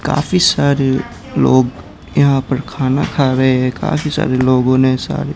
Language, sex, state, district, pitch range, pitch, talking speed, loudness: Hindi, male, Gujarat, Gandhinagar, 130-145 Hz, 130 Hz, 155 wpm, -15 LUFS